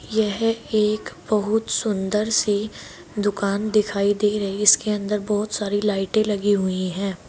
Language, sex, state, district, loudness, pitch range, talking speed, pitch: Hindi, female, Uttar Pradesh, Saharanpur, -21 LUFS, 200-215 Hz, 140 wpm, 210 Hz